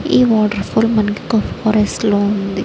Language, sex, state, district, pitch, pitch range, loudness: Telugu, female, Andhra Pradesh, Srikakulam, 210 Hz, 205-220 Hz, -15 LUFS